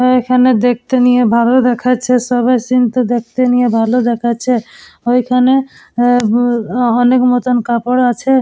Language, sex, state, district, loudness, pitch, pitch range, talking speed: Bengali, female, West Bengal, Dakshin Dinajpur, -13 LUFS, 245 Hz, 240-250 Hz, 140 wpm